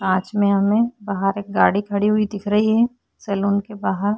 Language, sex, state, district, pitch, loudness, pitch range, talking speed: Hindi, female, Uttarakhand, Tehri Garhwal, 205 Hz, -20 LUFS, 200-215 Hz, 200 wpm